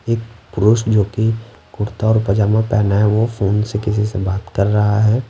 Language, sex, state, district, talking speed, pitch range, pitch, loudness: Hindi, male, Bihar, West Champaran, 205 wpm, 105-110 Hz, 105 Hz, -17 LUFS